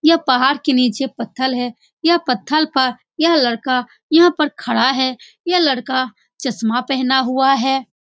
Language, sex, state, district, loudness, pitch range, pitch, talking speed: Hindi, female, Bihar, Saran, -17 LUFS, 250-300 Hz, 265 Hz, 155 wpm